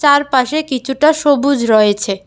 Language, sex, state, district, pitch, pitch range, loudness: Bengali, female, Tripura, West Tripura, 270 Hz, 225-290 Hz, -13 LUFS